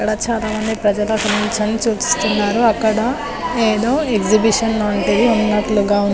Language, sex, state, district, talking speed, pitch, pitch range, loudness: Telugu, female, Telangana, Nalgonda, 115 wpm, 215 Hz, 210-225 Hz, -16 LUFS